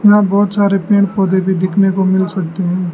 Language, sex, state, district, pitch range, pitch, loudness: Hindi, male, Arunachal Pradesh, Lower Dibang Valley, 185-200 Hz, 190 Hz, -14 LUFS